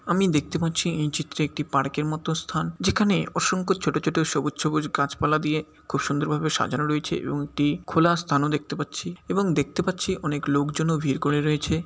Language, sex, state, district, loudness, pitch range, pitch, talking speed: Bengali, male, West Bengal, Malda, -25 LUFS, 145-160 Hz, 150 Hz, 180 wpm